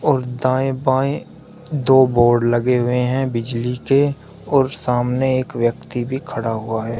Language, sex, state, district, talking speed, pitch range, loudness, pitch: Hindi, male, Uttar Pradesh, Shamli, 155 wpm, 120-135 Hz, -19 LUFS, 125 Hz